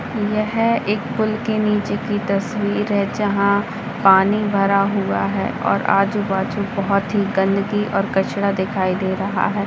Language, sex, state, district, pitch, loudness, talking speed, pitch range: Hindi, female, Bihar, Lakhisarai, 200 Hz, -19 LUFS, 150 wpm, 195-210 Hz